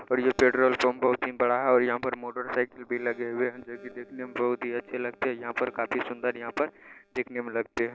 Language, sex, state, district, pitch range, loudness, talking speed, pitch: Maithili, male, Bihar, Saharsa, 120-125 Hz, -28 LUFS, 270 wpm, 125 Hz